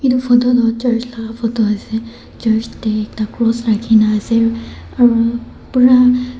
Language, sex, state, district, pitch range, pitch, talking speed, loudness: Nagamese, male, Nagaland, Dimapur, 220-245 Hz, 230 Hz, 140 wpm, -15 LUFS